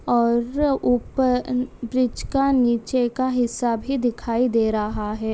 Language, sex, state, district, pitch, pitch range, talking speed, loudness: Hindi, female, Maharashtra, Nagpur, 245 Hz, 235-255 Hz, 145 wpm, -22 LUFS